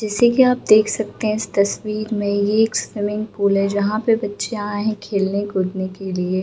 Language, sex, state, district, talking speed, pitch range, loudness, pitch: Hindi, female, Bihar, Gaya, 215 wpm, 200-215 Hz, -19 LUFS, 205 Hz